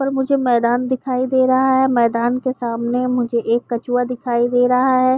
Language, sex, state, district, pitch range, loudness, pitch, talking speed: Hindi, female, Uttar Pradesh, Gorakhpur, 240-260 Hz, -17 LUFS, 250 Hz, 195 wpm